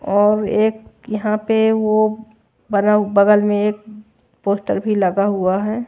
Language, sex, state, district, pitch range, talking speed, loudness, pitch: Hindi, female, Odisha, Malkangiri, 205-215 Hz, 135 wpm, -17 LUFS, 210 Hz